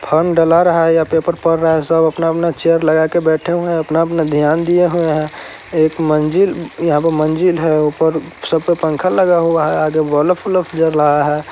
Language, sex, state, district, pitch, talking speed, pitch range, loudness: Hindi, male, Bihar, Sitamarhi, 165 Hz, 225 wpm, 155-170 Hz, -14 LUFS